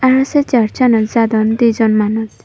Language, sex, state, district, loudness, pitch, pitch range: Chakma, female, Tripura, Dhalai, -13 LUFS, 230 Hz, 220-250 Hz